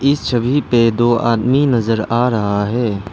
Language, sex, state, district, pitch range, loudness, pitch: Hindi, male, Arunachal Pradesh, Lower Dibang Valley, 115-125 Hz, -15 LUFS, 120 Hz